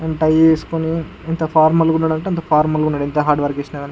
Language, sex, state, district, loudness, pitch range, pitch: Telugu, male, Andhra Pradesh, Guntur, -17 LUFS, 150-160 Hz, 160 Hz